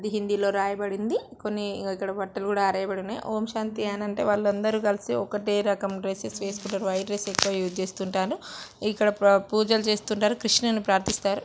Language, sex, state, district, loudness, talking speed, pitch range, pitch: Telugu, female, Andhra Pradesh, Srikakulam, -26 LUFS, 170 wpm, 195-215 Hz, 205 Hz